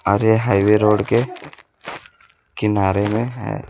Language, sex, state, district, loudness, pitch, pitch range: Hindi, male, Chhattisgarh, Raipur, -18 LUFS, 105 Hz, 100-120 Hz